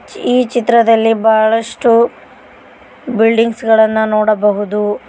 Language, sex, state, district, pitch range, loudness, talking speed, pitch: Kannada, female, Karnataka, Koppal, 220-235 Hz, -12 LUFS, 70 wpm, 225 Hz